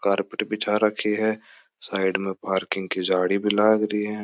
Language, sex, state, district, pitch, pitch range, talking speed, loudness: Marwari, male, Rajasthan, Churu, 105 Hz, 95-105 Hz, 170 wpm, -23 LUFS